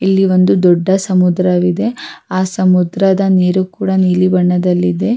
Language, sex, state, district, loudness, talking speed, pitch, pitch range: Kannada, female, Karnataka, Raichur, -13 LUFS, 115 wpm, 185 Hz, 180-190 Hz